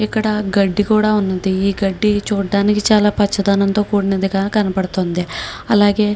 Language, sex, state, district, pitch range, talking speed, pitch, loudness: Telugu, female, Andhra Pradesh, Krishna, 195-210 Hz, 125 wpm, 205 Hz, -16 LUFS